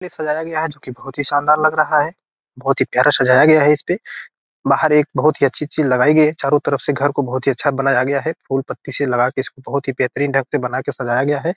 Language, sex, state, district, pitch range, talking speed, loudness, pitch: Hindi, male, Bihar, Gopalganj, 135-150 Hz, 270 wpm, -17 LUFS, 145 Hz